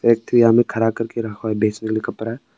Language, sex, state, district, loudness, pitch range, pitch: Hindi, male, Arunachal Pradesh, Papum Pare, -19 LUFS, 110-115 Hz, 115 Hz